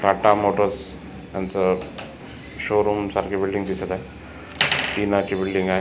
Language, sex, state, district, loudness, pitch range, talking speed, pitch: Marathi, male, Maharashtra, Washim, -22 LUFS, 95-100 Hz, 125 wpm, 95 Hz